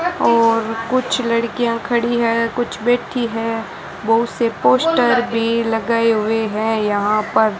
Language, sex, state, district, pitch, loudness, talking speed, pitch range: Hindi, male, Rajasthan, Bikaner, 230 Hz, -17 LUFS, 140 wpm, 220-235 Hz